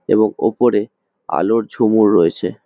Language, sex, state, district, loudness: Bengali, male, West Bengal, Jhargram, -16 LUFS